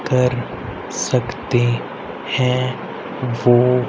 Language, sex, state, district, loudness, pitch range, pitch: Hindi, male, Haryana, Rohtak, -20 LUFS, 120-130 Hz, 125 Hz